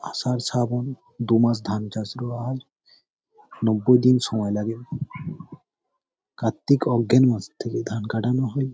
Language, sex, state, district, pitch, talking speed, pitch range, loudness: Bengali, male, West Bengal, Purulia, 125 Hz, 125 wpm, 110-130 Hz, -23 LUFS